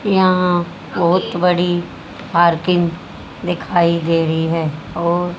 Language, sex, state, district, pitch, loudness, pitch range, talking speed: Hindi, female, Haryana, Jhajjar, 175 Hz, -17 LUFS, 170-180 Hz, 100 wpm